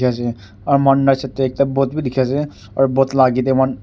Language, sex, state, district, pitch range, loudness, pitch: Nagamese, male, Nagaland, Kohima, 125-135 Hz, -17 LUFS, 130 Hz